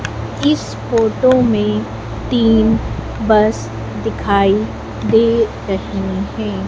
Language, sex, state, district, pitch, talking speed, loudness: Hindi, female, Madhya Pradesh, Dhar, 190 Hz, 80 wpm, -16 LUFS